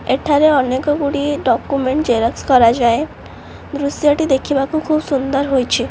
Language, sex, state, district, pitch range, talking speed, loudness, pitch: Odia, female, Odisha, Khordha, 260-295 Hz, 110 wpm, -16 LUFS, 280 Hz